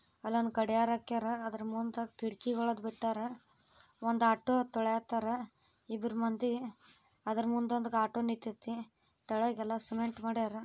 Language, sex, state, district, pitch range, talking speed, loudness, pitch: Kannada, female, Karnataka, Bijapur, 225-235 Hz, 125 wpm, -35 LUFS, 230 Hz